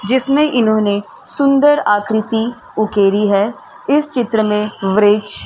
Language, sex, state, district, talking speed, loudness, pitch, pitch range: Hindi, female, Uttar Pradesh, Varanasi, 120 wpm, -14 LUFS, 215 Hz, 205-260 Hz